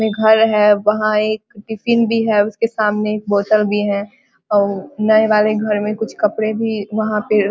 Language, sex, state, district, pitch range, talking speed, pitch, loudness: Hindi, female, Bihar, Vaishali, 210-220 Hz, 190 wpm, 215 Hz, -16 LUFS